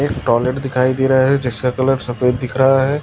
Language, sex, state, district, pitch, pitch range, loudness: Hindi, male, Chhattisgarh, Raipur, 130 Hz, 125-135 Hz, -16 LUFS